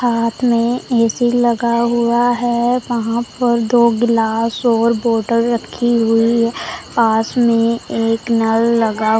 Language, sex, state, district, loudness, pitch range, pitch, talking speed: Hindi, female, Punjab, Pathankot, -15 LUFS, 230-240 Hz, 235 Hz, 135 wpm